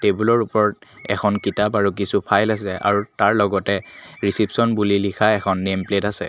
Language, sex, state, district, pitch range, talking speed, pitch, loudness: Assamese, male, Assam, Kamrup Metropolitan, 100-105 Hz, 170 wpm, 100 Hz, -19 LUFS